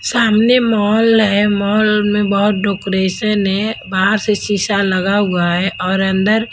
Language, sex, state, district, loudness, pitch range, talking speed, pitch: Hindi, female, Haryana, Jhajjar, -14 LUFS, 195-215 Hz, 145 wpm, 205 Hz